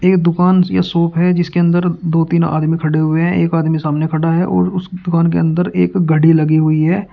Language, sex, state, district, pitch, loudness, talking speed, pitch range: Hindi, male, Uttar Pradesh, Shamli, 165 Hz, -14 LUFS, 235 wpm, 155-175 Hz